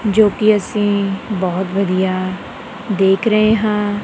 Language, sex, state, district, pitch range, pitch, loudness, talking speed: Punjabi, female, Punjab, Kapurthala, 195-215 Hz, 205 Hz, -16 LUFS, 120 wpm